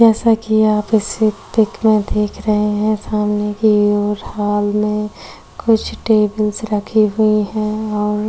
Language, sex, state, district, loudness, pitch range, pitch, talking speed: Hindi, female, Uttar Pradesh, Etah, -16 LUFS, 210-215 Hz, 210 Hz, 160 wpm